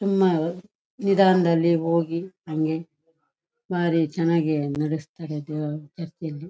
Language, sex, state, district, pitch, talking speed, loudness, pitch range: Kannada, female, Karnataka, Shimoga, 165 Hz, 85 wpm, -24 LUFS, 155-175 Hz